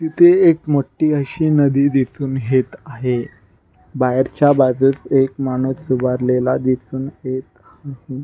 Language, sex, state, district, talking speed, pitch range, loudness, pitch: Marathi, male, Maharashtra, Nagpur, 115 wpm, 130-145 Hz, -17 LUFS, 130 Hz